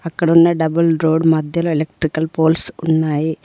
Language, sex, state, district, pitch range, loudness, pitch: Telugu, female, Telangana, Komaram Bheem, 160-165 Hz, -16 LUFS, 160 Hz